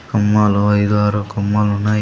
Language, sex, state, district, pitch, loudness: Telugu, male, Andhra Pradesh, Sri Satya Sai, 105 Hz, -16 LUFS